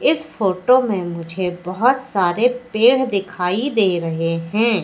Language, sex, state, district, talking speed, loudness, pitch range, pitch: Hindi, female, Madhya Pradesh, Katni, 135 wpm, -18 LUFS, 175-240 Hz, 195 Hz